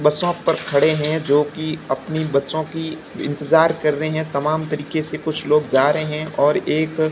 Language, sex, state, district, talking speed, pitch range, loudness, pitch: Hindi, male, Rajasthan, Barmer, 185 wpm, 150-155 Hz, -20 LUFS, 155 Hz